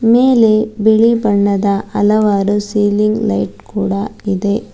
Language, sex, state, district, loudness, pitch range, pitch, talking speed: Kannada, female, Karnataka, Bangalore, -14 LUFS, 200-220 Hz, 205 Hz, 100 wpm